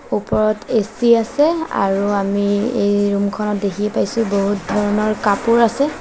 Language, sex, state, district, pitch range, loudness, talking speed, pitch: Assamese, female, Assam, Sonitpur, 200-230 Hz, -17 LUFS, 140 wpm, 210 Hz